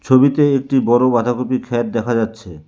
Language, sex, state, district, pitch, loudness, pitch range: Bengali, male, West Bengal, Alipurduar, 125 Hz, -16 LUFS, 115-130 Hz